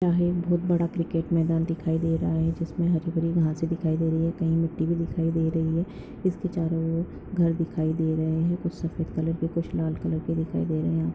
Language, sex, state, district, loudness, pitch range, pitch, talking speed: Hindi, female, Goa, North and South Goa, -26 LUFS, 160-170 Hz, 165 Hz, 240 wpm